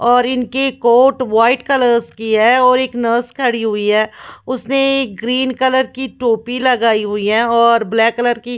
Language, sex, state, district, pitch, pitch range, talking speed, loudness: Hindi, female, Maharashtra, Washim, 240 Hz, 230-255 Hz, 175 wpm, -14 LUFS